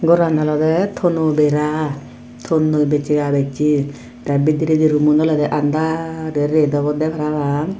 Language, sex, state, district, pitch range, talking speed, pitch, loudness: Chakma, female, Tripura, Dhalai, 145-155 Hz, 115 wpm, 150 Hz, -17 LUFS